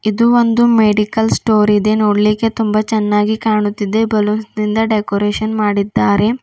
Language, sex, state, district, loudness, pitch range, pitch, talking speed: Kannada, female, Karnataka, Bidar, -14 LUFS, 210-220 Hz, 215 Hz, 120 wpm